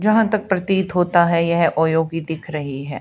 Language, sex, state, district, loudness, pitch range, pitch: Hindi, female, Haryana, Charkhi Dadri, -19 LUFS, 160-190 Hz, 170 Hz